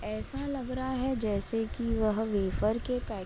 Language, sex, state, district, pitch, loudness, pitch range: Hindi, female, Uttar Pradesh, Budaun, 225 Hz, -31 LUFS, 215-255 Hz